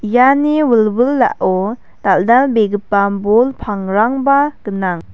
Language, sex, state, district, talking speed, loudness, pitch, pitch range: Garo, female, Meghalaya, West Garo Hills, 70 wpm, -14 LUFS, 220 Hz, 200-260 Hz